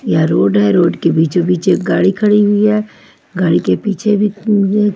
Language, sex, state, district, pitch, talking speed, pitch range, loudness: Hindi, female, Maharashtra, Gondia, 200 Hz, 205 wpm, 170-210 Hz, -13 LUFS